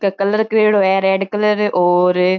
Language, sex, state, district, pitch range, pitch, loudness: Marwari, female, Rajasthan, Churu, 185-210 Hz, 195 Hz, -15 LUFS